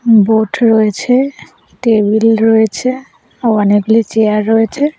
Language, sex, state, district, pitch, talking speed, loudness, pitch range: Bengali, female, West Bengal, Cooch Behar, 225 Hz, 95 wpm, -12 LUFS, 215-245 Hz